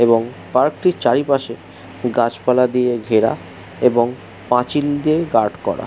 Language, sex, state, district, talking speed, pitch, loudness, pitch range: Bengali, male, West Bengal, Jhargram, 125 wpm, 120 Hz, -17 LUFS, 110-125 Hz